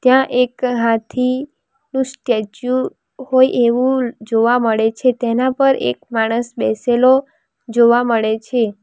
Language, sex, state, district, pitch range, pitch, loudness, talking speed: Gujarati, female, Gujarat, Valsad, 230-260 Hz, 245 Hz, -16 LUFS, 120 wpm